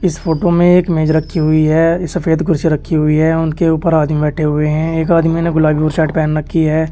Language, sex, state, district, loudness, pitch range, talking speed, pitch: Hindi, male, Uttar Pradesh, Shamli, -14 LUFS, 155-165 Hz, 235 wpm, 160 Hz